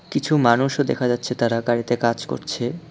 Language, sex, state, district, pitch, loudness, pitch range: Bengali, male, West Bengal, Cooch Behar, 120 Hz, -21 LUFS, 120-145 Hz